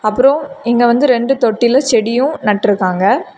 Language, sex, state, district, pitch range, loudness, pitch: Tamil, female, Tamil Nadu, Kanyakumari, 220-270 Hz, -13 LUFS, 240 Hz